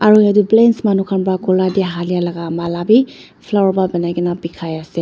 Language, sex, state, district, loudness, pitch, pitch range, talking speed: Nagamese, female, Nagaland, Dimapur, -15 LUFS, 185 Hz, 170-205 Hz, 205 wpm